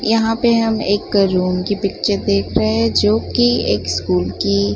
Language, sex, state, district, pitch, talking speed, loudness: Hindi, female, Gujarat, Gandhinagar, 195 Hz, 190 wpm, -16 LUFS